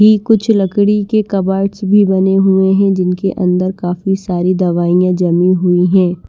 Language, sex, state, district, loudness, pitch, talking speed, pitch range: Hindi, female, Maharashtra, Washim, -13 LUFS, 190 Hz, 155 wpm, 180-200 Hz